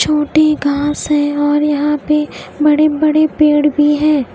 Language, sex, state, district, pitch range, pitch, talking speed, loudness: Hindi, female, Odisha, Khordha, 295-305 Hz, 295 Hz, 150 wpm, -13 LUFS